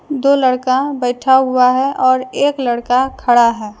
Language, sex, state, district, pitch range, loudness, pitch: Hindi, female, Jharkhand, Deoghar, 245-265 Hz, -14 LUFS, 255 Hz